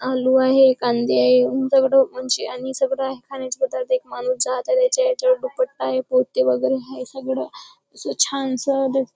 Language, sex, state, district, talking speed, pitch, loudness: Marathi, female, Maharashtra, Chandrapur, 130 wpm, 265 Hz, -20 LUFS